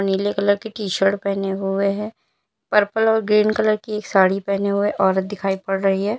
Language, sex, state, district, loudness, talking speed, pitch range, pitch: Hindi, female, Uttar Pradesh, Lalitpur, -20 LUFS, 195 wpm, 195-210 Hz, 200 Hz